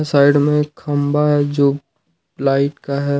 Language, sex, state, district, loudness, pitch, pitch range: Hindi, male, Jharkhand, Ranchi, -17 LUFS, 145 Hz, 140-150 Hz